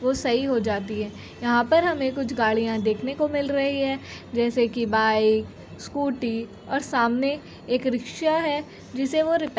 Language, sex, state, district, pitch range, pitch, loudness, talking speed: Hindi, female, Uttar Pradesh, Jyotiba Phule Nagar, 230-280 Hz, 255 Hz, -24 LUFS, 175 wpm